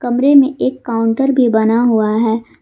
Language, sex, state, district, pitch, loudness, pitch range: Hindi, female, Jharkhand, Garhwa, 235 Hz, -13 LUFS, 225-260 Hz